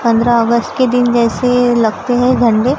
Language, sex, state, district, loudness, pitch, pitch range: Hindi, male, Maharashtra, Gondia, -12 LUFS, 240 Hz, 235-245 Hz